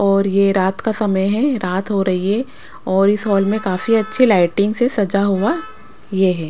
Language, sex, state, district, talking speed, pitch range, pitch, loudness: Hindi, female, Punjab, Pathankot, 205 wpm, 190-220 Hz, 200 Hz, -17 LUFS